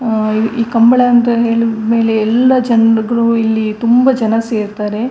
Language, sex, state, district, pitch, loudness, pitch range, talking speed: Kannada, female, Karnataka, Dakshina Kannada, 230 Hz, -12 LUFS, 220-235 Hz, 165 wpm